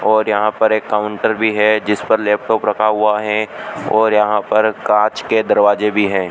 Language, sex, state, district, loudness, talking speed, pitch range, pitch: Hindi, male, Rajasthan, Bikaner, -15 LUFS, 200 wpm, 105-110 Hz, 105 Hz